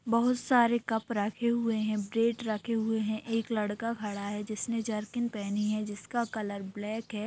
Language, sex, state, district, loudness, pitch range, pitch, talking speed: Hindi, female, Bihar, Saran, -31 LUFS, 210-230 Hz, 220 Hz, 180 wpm